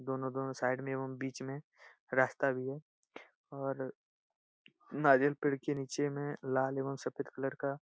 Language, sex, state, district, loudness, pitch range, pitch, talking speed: Hindi, male, Bihar, Jahanabad, -35 LUFS, 130-140 Hz, 135 Hz, 160 wpm